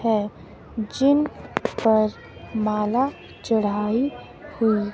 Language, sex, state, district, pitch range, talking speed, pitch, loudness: Hindi, female, Himachal Pradesh, Shimla, 210-255 Hz, 75 wpm, 220 Hz, -23 LUFS